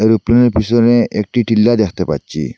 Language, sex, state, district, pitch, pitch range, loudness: Bengali, male, Assam, Hailakandi, 110 Hz, 105-120 Hz, -13 LUFS